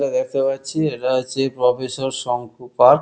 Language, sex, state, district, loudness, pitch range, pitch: Bengali, male, West Bengal, Kolkata, -20 LUFS, 125-135 Hz, 130 Hz